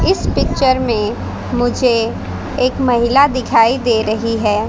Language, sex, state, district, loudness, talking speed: Hindi, female, Haryana, Jhajjar, -15 LUFS, 130 wpm